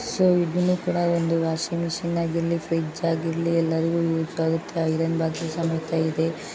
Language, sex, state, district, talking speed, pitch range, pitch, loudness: Kannada, female, Karnataka, Raichur, 145 wpm, 165-170 Hz, 165 Hz, -24 LUFS